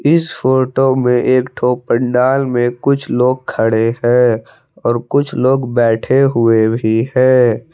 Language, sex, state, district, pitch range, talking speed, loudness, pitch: Hindi, male, Jharkhand, Palamu, 120-130 Hz, 140 wpm, -14 LUFS, 125 Hz